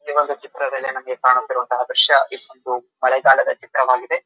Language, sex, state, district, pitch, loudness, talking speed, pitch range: Kannada, male, Karnataka, Dharwad, 130 Hz, -18 LUFS, 115 wpm, 125-140 Hz